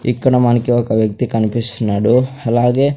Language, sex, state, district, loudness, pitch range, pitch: Telugu, male, Andhra Pradesh, Sri Satya Sai, -15 LUFS, 110-125 Hz, 120 Hz